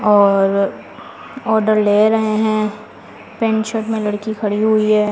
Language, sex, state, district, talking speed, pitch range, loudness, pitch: Hindi, female, Delhi, New Delhi, 140 wpm, 210-220 Hz, -16 LUFS, 215 Hz